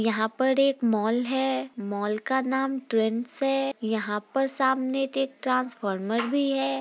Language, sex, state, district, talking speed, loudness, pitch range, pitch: Hindi, female, Bihar, Gopalganj, 160 wpm, -26 LUFS, 220-270 Hz, 260 Hz